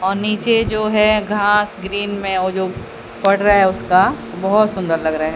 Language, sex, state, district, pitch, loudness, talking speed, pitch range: Hindi, female, Odisha, Sambalpur, 195 Hz, -16 LUFS, 200 wpm, 185-210 Hz